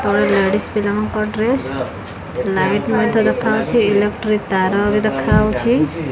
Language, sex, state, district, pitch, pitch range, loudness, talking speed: Odia, female, Odisha, Khordha, 205 Hz, 190-220 Hz, -17 LUFS, 120 wpm